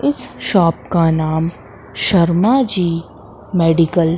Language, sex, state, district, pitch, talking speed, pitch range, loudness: Hindi, female, Madhya Pradesh, Katni, 170 Hz, 115 wpm, 160-185 Hz, -15 LUFS